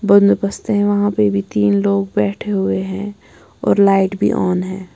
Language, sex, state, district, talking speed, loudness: Hindi, female, Punjab, Kapurthala, 180 wpm, -16 LUFS